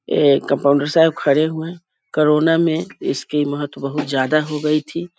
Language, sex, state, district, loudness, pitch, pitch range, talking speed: Hindi, female, Bihar, East Champaran, -18 LUFS, 150 Hz, 145-160 Hz, 175 wpm